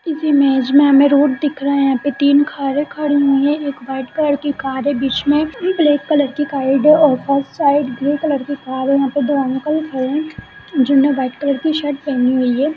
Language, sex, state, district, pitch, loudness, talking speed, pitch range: Hindi, female, Bihar, Purnia, 280 Hz, -16 LUFS, 205 wpm, 270-295 Hz